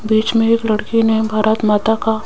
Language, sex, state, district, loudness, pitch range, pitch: Hindi, female, Rajasthan, Jaipur, -15 LUFS, 215-225 Hz, 220 Hz